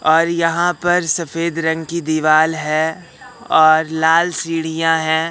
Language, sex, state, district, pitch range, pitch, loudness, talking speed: Hindi, male, Madhya Pradesh, Katni, 160-170 Hz, 165 Hz, -16 LUFS, 135 wpm